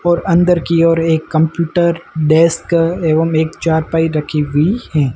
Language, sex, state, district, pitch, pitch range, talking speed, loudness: Hindi, male, Rajasthan, Jaisalmer, 165 Hz, 155-170 Hz, 150 wpm, -14 LUFS